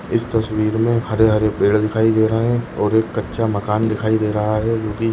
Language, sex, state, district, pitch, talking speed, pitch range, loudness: Hindi, male, Goa, North and South Goa, 110 Hz, 235 wpm, 105-115 Hz, -18 LUFS